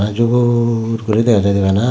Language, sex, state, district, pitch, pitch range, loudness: Chakma, male, Tripura, Dhalai, 115 Hz, 105-120 Hz, -15 LUFS